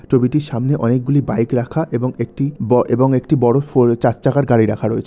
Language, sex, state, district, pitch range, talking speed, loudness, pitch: Bengali, male, West Bengal, North 24 Parganas, 120-140 Hz, 200 wpm, -16 LUFS, 125 Hz